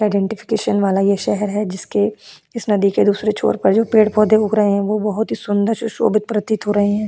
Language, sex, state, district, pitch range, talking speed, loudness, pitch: Hindi, female, Goa, North and South Goa, 205-215 Hz, 220 wpm, -17 LUFS, 210 Hz